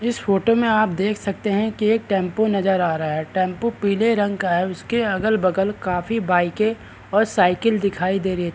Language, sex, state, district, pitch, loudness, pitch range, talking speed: Hindi, male, Bihar, Araria, 200 Hz, -20 LUFS, 185-220 Hz, 210 wpm